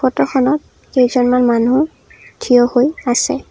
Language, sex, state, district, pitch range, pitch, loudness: Assamese, female, Assam, Kamrup Metropolitan, 245-265 Hz, 250 Hz, -14 LUFS